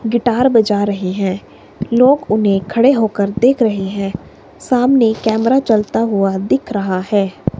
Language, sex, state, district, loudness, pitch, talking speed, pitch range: Hindi, female, Himachal Pradesh, Shimla, -15 LUFS, 215 Hz, 140 wpm, 195-235 Hz